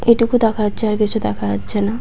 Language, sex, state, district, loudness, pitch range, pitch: Bengali, female, West Bengal, Purulia, -18 LUFS, 205-230 Hz, 215 Hz